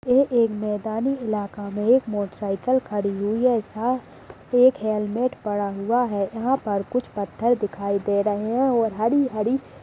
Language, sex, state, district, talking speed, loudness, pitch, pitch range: Hindi, male, Chhattisgarh, Sarguja, 160 wpm, -23 LUFS, 220 Hz, 205-245 Hz